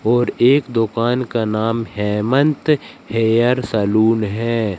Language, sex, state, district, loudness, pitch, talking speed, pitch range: Hindi, female, Madhya Pradesh, Katni, -17 LUFS, 115 Hz, 115 wpm, 110-125 Hz